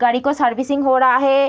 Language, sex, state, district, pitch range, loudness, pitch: Hindi, female, Bihar, Kishanganj, 255-275 Hz, -16 LUFS, 265 Hz